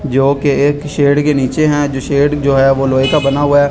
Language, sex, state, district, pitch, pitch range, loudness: Hindi, male, Delhi, New Delhi, 145 Hz, 135-145 Hz, -13 LUFS